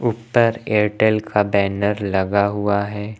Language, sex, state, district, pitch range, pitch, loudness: Hindi, male, Uttar Pradesh, Lucknow, 100-110 Hz, 105 Hz, -19 LUFS